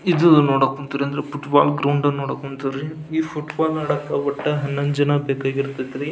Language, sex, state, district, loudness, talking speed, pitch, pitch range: Kannada, male, Karnataka, Belgaum, -21 LUFS, 185 wpm, 145 Hz, 140-150 Hz